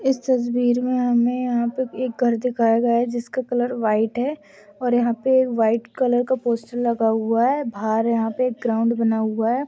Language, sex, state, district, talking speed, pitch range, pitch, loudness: Hindi, female, Maharashtra, Solapur, 200 wpm, 225-250 Hz, 240 Hz, -21 LUFS